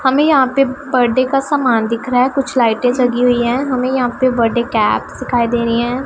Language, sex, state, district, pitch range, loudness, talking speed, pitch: Hindi, female, Punjab, Pathankot, 240-265 Hz, -15 LUFS, 225 wpm, 250 Hz